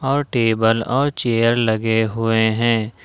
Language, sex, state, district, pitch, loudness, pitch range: Hindi, male, Jharkhand, Ranchi, 115 Hz, -18 LUFS, 110-120 Hz